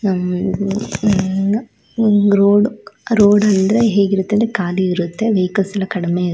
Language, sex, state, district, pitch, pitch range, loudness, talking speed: Kannada, female, Karnataka, Shimoga, 200 Hz, 190-210 Hz, -16 LUFS, 105 wpm